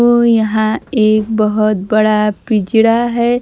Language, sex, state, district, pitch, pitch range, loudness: Hindi, female, Bihar, Kaimur, 220 Hz, 215-235 Hz, -13 LUFS